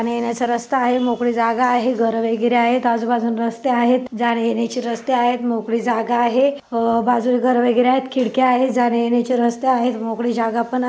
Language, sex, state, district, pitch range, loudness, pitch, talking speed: Marathi, female, Maharashtra, Dhule, 235-250 Hz, -18 LUFS, 240 Hz, 195 wpm